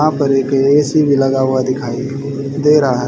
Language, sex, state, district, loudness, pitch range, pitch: Hindi, male, Haryana, Rohtak, -14 LUFS, 135-145 Hz, 140 Hz